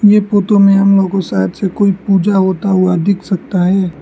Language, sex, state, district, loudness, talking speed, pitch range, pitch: Hindi, male, Arunachal Pradesh, Lower Dibang Valley, -12 LUFS, 225 wpm, 185-200 Hz, 195 Hz